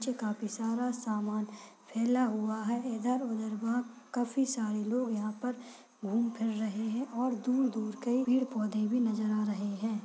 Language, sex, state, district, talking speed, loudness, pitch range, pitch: Hindi, female, Maharashtra, Solapur, 175 wpm, -33 LUFS, 215-245 Hz, 225 Hz